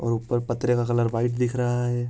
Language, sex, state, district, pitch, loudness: Hindi, male, Uttarakhand, Tehri Garhwal, 120 Hz, -24 LUFS